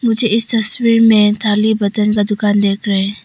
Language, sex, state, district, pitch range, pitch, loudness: Hindi, female, Arunachal Pradesh, Papum Pare, 205-225 Hz, 210 Hz, -13 LUFS